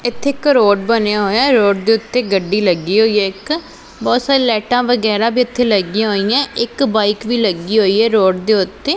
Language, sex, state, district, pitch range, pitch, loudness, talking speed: Punjabi, female, Punjab, Pathankot, 205-245 Hz, 220 Hz, -14 LUFS, 200 wpm